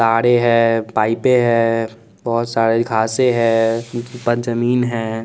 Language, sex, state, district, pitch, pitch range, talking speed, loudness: Hindi, male, Bihar, West Champaran, 115 Hz, 115-120 Hz, 125 wpm, -16 LUFS